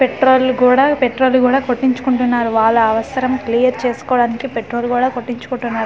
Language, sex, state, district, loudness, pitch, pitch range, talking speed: Telugu, female, Andhra Pradesh, Manyam, -15 LUFS, 250 Hz, 240-260 Hz, 125 wpm